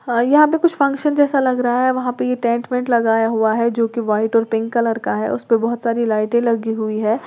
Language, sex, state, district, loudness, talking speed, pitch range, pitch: Hindi, female, Uttar Pradesh, Lalitpur, -17 LUFS, 255 wpm, 225-250 Hz, 235 Hz